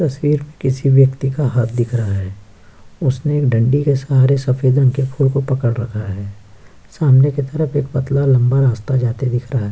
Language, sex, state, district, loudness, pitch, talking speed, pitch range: Hindi, male, Bihar, Kishanganj, -16 LUFS, 130 Hz, 205 wpm, 115-140 Hz